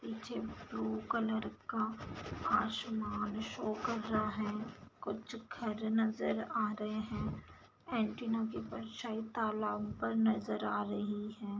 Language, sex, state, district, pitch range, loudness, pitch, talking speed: Hindi, female, Bihar, Saharsa, 210-225 Hz, -38 LUFS, 215 Hz, 125 wpm